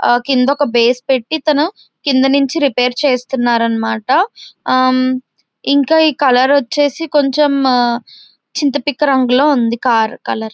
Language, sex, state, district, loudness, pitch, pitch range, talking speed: Telugu, female, Andhra Pradesh, Visakhapatnam, -14 LUFS, 265 Hz, 245-290 Hz, 135 wpm